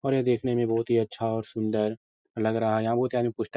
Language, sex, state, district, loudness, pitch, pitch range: Hindi, male, Uttar Pradesh, Etah, -27 LUFS, 115 Hz, 110-120 Hz